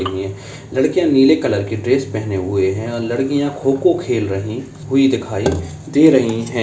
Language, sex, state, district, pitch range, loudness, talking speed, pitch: Hindi, male, Uttar Pradesh, Budaun, 105-135 Hz, -17 LUFS, 165 wpm, 125 Hz